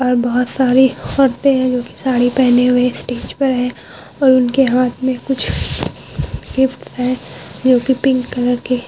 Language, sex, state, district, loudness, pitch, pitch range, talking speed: Hindi, female, Bihar, Vaishali, -15 LUFS, 255 Hz, 245-265 Hz, 170 wpm